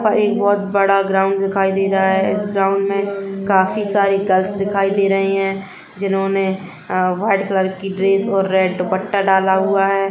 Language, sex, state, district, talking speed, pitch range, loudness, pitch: Hindi, female, Chhattisgarh, Rajnandgaon, 185 wpm, 190-200 Hz, -17 LUFS, 195 Hz